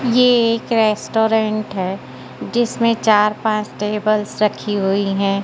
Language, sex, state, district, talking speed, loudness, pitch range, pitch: Hindi, female, Madhya Pradesh, Katni, 120 wpm, -17 LUFS, 210-230 Hz, 215 Hz